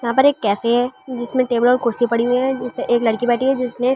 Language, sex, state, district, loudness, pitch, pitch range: Hindi, female, Delhi, New Delhi, -18 LUFS, 245 Hz, 235-255 Hz